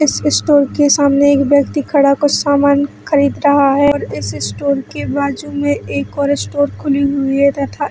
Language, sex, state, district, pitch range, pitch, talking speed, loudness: Hindi, female, Chhattisgarh, Bilaspur, 280-285 Hz, 285 Hz, 190 wpm, -14 LUFS